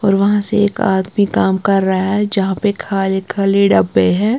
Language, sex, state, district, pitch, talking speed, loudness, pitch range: Hindi, female, Punjab, Kapurthala, 200 Hz, 190 wpm, -15 LUFS, 190-205 Hz